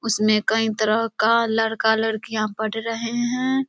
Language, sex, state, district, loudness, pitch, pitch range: Hindi, female, Bihar, Samastipur, -21 LUFS, 225 Hz, 220-230 Hz